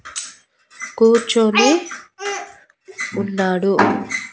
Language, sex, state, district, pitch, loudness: Telugu, female, Andhra Pradesh, Annamaya, 230 Hz, -17 LUFS